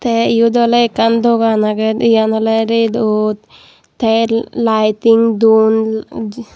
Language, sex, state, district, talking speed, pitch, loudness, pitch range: Chakma, female, Tripura, Dhalai, 110 wpm, 225 Hz, -13 LUFS, 220-230 Hz